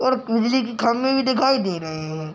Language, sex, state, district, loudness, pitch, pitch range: Hindi, male, Bihar, Gopalganj, -21 LUFS, 235 Hz, 175-260 Hz